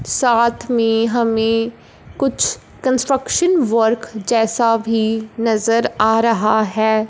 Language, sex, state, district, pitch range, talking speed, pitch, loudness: Hindi, female, Punjab, Fazilka, 220-240 Hz, 100 wpm, 225 Hz, -17 LUFS